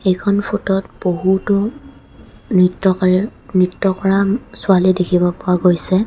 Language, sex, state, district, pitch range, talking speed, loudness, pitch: Assamese, female, Assam, Kamrup Metropolitan, 185-200 Hz, 120 wpm, -16 LUFS, 190 Hz